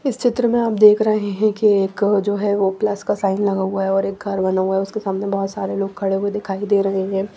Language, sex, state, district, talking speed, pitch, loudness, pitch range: Hindi, female, Punjab, Pathankot, 285 wpm, 200 Hz, -19 LUFS, 195-210 Hz